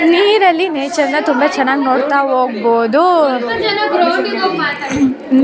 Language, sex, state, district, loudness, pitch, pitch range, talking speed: Kannada, female, Karnataka, Chamarajanagar, -13 LUFS, 285 Hz, 265-335 Hz, 65 wpm